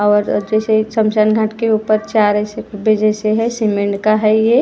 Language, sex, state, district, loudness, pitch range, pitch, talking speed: Hindi, female, Maharashtra, Gondia, -15 LUFS, 210-220 Hz, 215 Hz, 170 wpm